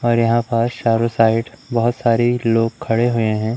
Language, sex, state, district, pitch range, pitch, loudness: Hindi, male, Madhya Pradesh, Umaria, 115-120 Hz, 115 Hz, -17 LUFS